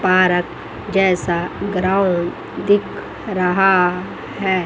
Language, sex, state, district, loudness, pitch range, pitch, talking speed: Hindi, female, Chandigarh, Chandigarh, -18 LUFS, 180-195 Hz, 185 Hz, 75 wpm